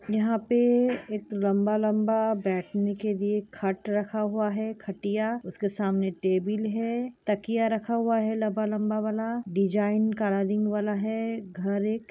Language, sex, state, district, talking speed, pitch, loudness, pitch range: Hindi, female, Goa, North and South Goa, 145 wpm, 215 Hz, -27 LUFS, 200-220 Hz